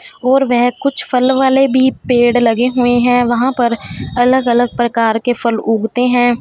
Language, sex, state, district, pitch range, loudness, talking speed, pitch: Hindi, female, Punjab, Fazilka, 240-260 Hz, -13 LUFS, 180 wpm, 245 Hz